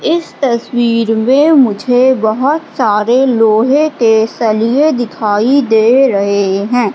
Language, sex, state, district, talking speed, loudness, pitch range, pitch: Hindi, female, Madhya Pradesh, Katni, 110 wpm, -11 LUFS, 220-270 Hz, 240 Hz